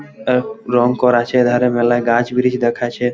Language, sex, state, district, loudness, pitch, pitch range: Bengali, male, West Bengal, Malda, -16 LUFS, 125 Hz, 120-125 Hz